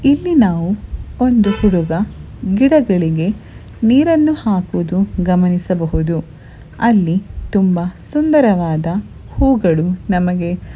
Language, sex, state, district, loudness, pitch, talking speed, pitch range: Kannada, female, Karnataka, Bellary, -15 LUFS, 190 Hz, 70 wpm, 175-235 Hz